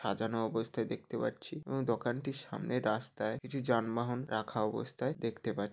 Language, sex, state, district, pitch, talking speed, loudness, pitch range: Bengali, male, West Bengal, Jalpaiguri, 115 Hz, 145 wpm, -36 LUFS, 110-130 Hz